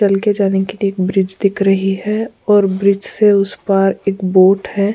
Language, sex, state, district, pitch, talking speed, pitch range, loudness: Hindi, female, Goa, North and South Goa, 195 Hz, 220 wpm, 195-205 Hz, -14 LUFS